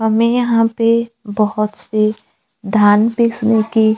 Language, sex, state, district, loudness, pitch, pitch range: Hindi, female, Maharashtra, Gondia, -15 LUFS, 220 Hz, 215-230 Hz